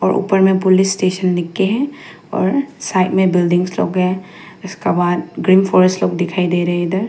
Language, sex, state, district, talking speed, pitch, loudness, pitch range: Hindi, female, Arunachal Pradesh, Papum Pare, 195 wpm, 185 Hz, -16 LUFS, 175-190 Hz